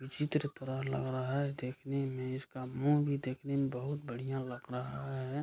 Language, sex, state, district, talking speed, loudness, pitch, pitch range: Hindi, male, Bihar, Kishanganj, 200 wpm, -37 LUFS, 135 Hz, 130-140 Hz